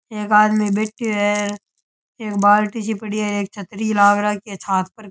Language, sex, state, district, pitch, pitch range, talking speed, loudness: Rajasthani, male, Rajasthan, Churu, 210 Hz, 205-215 Hz, 200 wpm, -19 LUFS